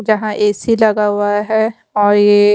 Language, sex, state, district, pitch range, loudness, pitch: Hindi, female, Chhattisgarh, Raipur, 205-220 Hz, -14 LUFS, 210 Hz